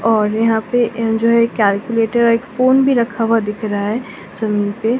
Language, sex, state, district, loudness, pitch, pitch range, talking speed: Hindi, female, Delhi, New Delhi, -16 LUFS, 225 Hz, 210-235 Hz, 230 wpm